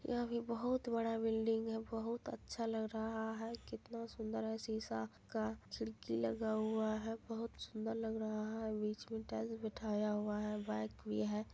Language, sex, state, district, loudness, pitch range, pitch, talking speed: Hindi, female, Bihar, Supaul, -41 LUFS, 210-225 Hz, 220 Hz, 175 wpm